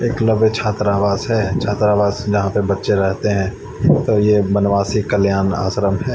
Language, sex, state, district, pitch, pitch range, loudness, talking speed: Hindi, male, Haryana, Charkhi Dadri, 100 Hz, 100-110 Hz, -17 LUFS, 135 wpm